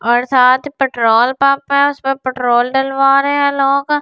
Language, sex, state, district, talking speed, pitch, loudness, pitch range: Hindi, female, Delhi, New Delhi, 180 wpm, 270 Hz, -13 LUFS, 250-280 Hz